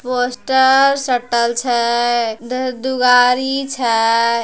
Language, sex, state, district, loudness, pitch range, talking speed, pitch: Angika, female, Bihar, Begusarai, -15 LUFS, 235-260 Hz, 80 wpm, 250 Hz